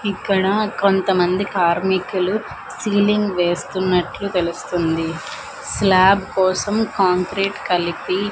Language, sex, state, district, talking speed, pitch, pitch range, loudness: Telugu, female, Andhra Pradesh, Manyam, 70 wpm, 190 Hz, 180-200 Hz, -19 LUFS